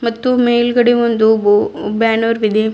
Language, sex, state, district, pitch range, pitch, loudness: Kannada, female, Karnataka, Bidar, 220-240 Hz, 230 Hz, -13 LUFS